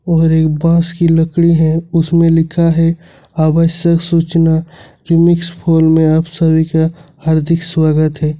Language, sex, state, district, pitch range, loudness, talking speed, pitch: Hindi, male, Jharkhand, Ranchi, 160-170 Hz, -12 LUFS, 145 wpm, 165 Hz